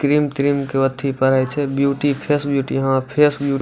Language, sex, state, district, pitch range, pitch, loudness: Maithili, male, Bihar, Supaul, 135-145 Hz, 140 Hz, -18 LUFS